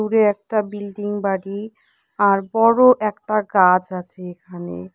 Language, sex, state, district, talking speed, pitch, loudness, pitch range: Bengali, female, West Bengal, Cooch Behar, 120 wpm, 205 Hz, -18 LUFS, 185-215 Hz